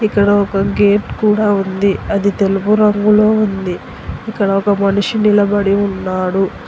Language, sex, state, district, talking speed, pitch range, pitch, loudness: Telugu, female, Telangana, Hyderabad, 125 wpm, 195-210 Hz, 200 Hz, -14 LUFS